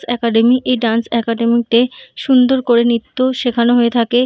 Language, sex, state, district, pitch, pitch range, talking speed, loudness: Bengali, female, West Bengal, North 24 Parganas, 235 Hz, 235-250 Hz, 155 wpm, -14 LUFS